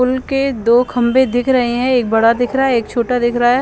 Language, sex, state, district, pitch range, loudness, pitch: Hindi, female, Chandigarh, Chandigarh, 240-260 Hz, -14 LUFS, 245 Hz